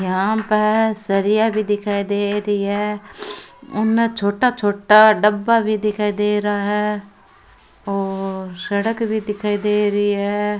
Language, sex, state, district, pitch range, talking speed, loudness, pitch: Rajasthani, female, Rajasthan, Churu, 200-215 Hz, 135 wpm, -19 LUFS, 210 Hz